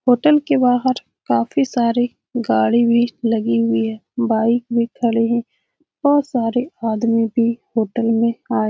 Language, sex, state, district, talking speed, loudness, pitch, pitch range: Hindi, female, Bihar, Saran, 150 wpm, -18 LUFS, 235 Hz, 225-245 Hz